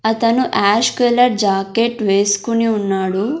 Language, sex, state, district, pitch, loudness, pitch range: Telugu, female, Andhra Pradesh, Sri Satya Sai, 220 Hz, -16 LUFS, 200-235 Hz